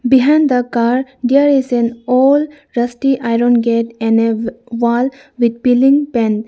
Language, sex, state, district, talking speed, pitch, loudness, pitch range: English, female, Arunachal Pradesh, Lower Dibang Valley, 165 wpm, 245 Hz, -14 LUFS, 235-270 Hz